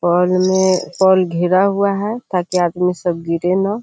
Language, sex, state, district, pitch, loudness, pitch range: Hindi, female, Bihar, Kishanganj, 185 Hz, -16 LUFS, 175-190 Hz